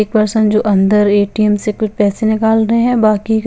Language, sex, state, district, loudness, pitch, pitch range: Hindi, female, Chandigarh, Chandigarh, -13 LUFS, 215 Hz, 210-220 Hz